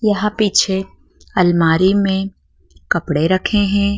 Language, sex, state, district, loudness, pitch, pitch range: Hindi, female, Madhya Pradesh, Dhar, -16 LUFS, 190 Hz, 165-200 Hz